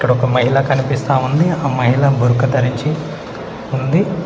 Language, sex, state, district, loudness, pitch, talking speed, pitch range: Telugu, male, Telangana, Mahabubabad, -15 LUFS, 135 Hz, 140 wpm, 125-150 Hz